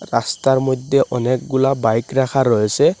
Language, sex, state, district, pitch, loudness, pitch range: Bengali, male, Assam, Hailakandi, 130 Hz, -17 LUFS, 125-135 Hz